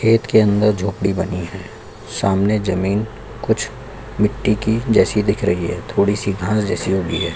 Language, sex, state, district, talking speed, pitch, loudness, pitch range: Hindi, male, Chhattisgarh, Sukma, 170 wpm, 100 Hz, -18 LUFS, 95-110 Hz